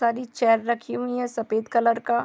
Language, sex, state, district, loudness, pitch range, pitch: Hindi, female, Bihar, Sitamarhi, -24 LUFS, 230-240 Hz, 235 Hz